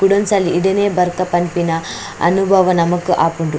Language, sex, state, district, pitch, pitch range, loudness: Tulu, female, Karnataka, Dakshina Kannada, 180 Hz, 170-195 Hz, -15 LUFS